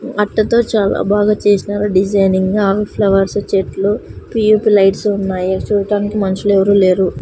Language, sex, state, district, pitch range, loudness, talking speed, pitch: Telugu, female, Andhra Pradesh, Sri Satya Sai, 195-210 Hz, -14 LUFS, 125 wpm, 205 Hz